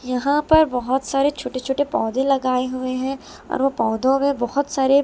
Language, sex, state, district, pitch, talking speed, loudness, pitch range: Hindi, female, Delhi, New Delhi, 265 Hz, 190 wpm, -20 LUFS, 255-280 Hz